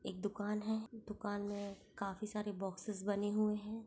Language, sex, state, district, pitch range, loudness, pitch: Hindi, female, Bihar, East Champaran, 205-215 Hz, -41 LUFS, 210 Hz